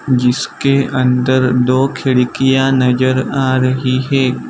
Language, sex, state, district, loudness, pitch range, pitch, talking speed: Hindi, male, Gujarat, Valsad, -14 LUFS, 125-135 Hz, 130 Hz, 105 wpm